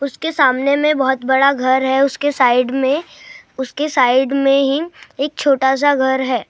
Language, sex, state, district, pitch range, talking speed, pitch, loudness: Hindi, male, Maharashtra, Gondia, 265-285 Hz, 150 wpm, 270 Hz, -15 LUFS